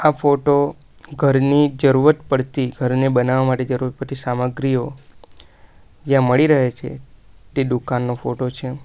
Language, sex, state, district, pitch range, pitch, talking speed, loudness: Gujarati, male, Gujarat, Valsad, 125-140 Hz, 130 Hz, 135 wpm, -18 LUFS